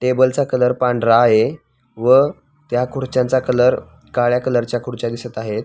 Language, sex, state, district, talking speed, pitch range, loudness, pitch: Marathi, male, Maharashtra, Pune, 150 wpm, 120-130 Hz, -17 LUFS, 125 Hz